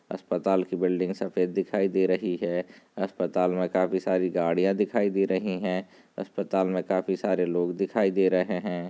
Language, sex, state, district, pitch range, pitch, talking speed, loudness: Hindi, male, Chhattisgarh, Raigarh, 90-95 Hz, 95 Hz, 175 wpm, -27 LUFS